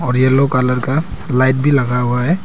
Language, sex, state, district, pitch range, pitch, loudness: Hindi, male, Arunachal Pradesh, Papum Pare, 125-140 Hz, 130 Hz, -15 LUFS